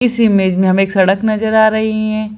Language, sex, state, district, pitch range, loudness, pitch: Hindi, female, Bihar, Lakhisarai, 195-220 Hz, -13 LUFS, 215 Hz